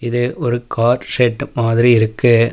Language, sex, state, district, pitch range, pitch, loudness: Tamil, male, Tamil Nadu, Namakkal, 115-125 Hz, 120 Hz, -15 LUFS